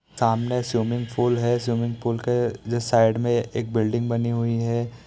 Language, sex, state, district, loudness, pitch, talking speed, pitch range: Hindi, male, Bihar, East Champaran, -23 LUFS, 120 Hz, 175 wpm, 115-120 Hz